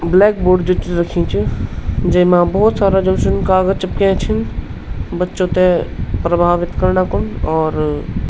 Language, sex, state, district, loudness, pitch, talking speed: Garhwali, male, Uttarakhand, Tehri Garhwal, -15 LUFS, 175 Hz, 150 wpm